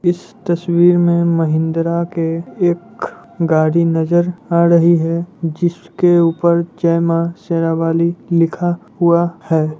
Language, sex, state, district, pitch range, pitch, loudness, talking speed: Hindi, male, Bihar, Muzaffarpur, 165-175 Hz, 170 Hz, -15 LUFS, 110 wpm